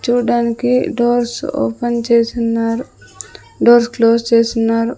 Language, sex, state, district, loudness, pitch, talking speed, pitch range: Telugu, female, Andhra Pradesh, Sri Satya Sai, -15 LUFS, 235 Hz, 85 wpm, 230-240 Hz